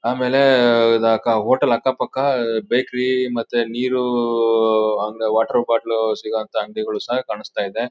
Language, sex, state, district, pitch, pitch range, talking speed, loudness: Kannada, male, Karnataka, Mysore, 115 Hz, 110-125 Hz, 115 wpm, -19 LUFS